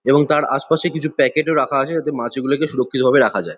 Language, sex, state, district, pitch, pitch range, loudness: Bengali, male, West Bengal, Kolkata, 145 Hz, 135-155 Hz, -17 LUFS